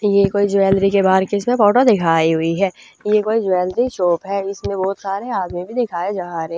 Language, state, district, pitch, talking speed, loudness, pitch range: Haryanvi, Haryana, Rohtak, 195 Hz, 230 wpm, -17 LUFS, 180-205 Hz